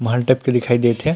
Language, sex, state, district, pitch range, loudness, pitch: Chhattisgarhi, male, Chhattisgarh, Rajnandgaon, 120-130 Hz, -17 LUFS, 120 Hz